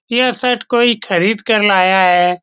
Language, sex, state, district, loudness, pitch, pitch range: Hindi, male, Bihar, Saran, -13 LUFS, 210 Hz, 185-240 Hz